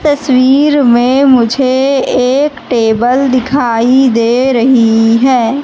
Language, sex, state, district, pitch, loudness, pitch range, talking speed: Hindi, female, Madhya Pradesh, Katni, 255 Hz, -9 LUFS, 235-270 Hz, 95 wpm